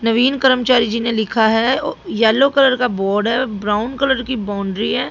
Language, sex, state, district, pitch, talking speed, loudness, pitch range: Hindi, female, Haryana, Jhajjar, 230 Hz, 190 wpm, -16 LUFS, 220-255 Hz